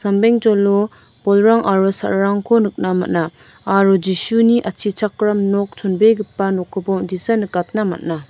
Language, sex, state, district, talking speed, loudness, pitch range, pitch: Garo, female, Meghalaya, North Garo Hills, 110 wpm, -17 LUFS, 190-215 Hz, 200 Hz